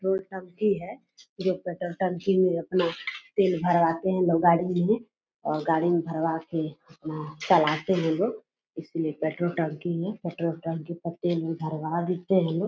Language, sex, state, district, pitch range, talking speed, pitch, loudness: Hindi, female, Bihar, Purnia, 165-185 Hz, 165 wpm, 170 Hz, -27 LUFS